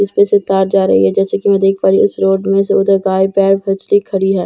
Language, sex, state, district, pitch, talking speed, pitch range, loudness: Hindi, female, Bihar, Katihar, 195 Hz, 310 wpm, 190-195 Hz, -12 LUFS